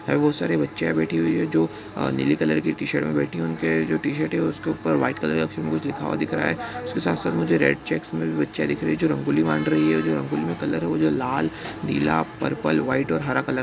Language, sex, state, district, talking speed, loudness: Hindi, male, Bihar, Bhagalpur, 295 wpm, -23 LUFS